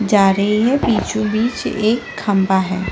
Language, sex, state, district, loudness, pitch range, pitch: Hindi, female, Chhattisgarh, Sarguja, -17 LUFS, 195-225 Hz, 210 Hz